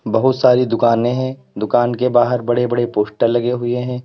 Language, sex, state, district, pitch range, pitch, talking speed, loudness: Hindi, male, Uttar Pradesh, Lalitpur, 120-125 Hz, 120 Hz, 190 wpm, -16 LUFS